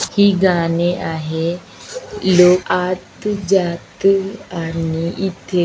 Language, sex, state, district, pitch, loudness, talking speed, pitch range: Marathi, female, Maharashtra, Aurangabad, 180 Hz, -17 LUFS, 95 wpm, 170-195 Hz